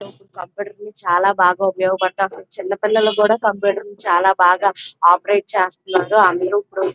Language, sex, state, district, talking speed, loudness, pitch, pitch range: Telugu, female, Andhra Pradesh, Krishna, 95 wpm, -17 LUFS, 195 Hz, 185-205 Hz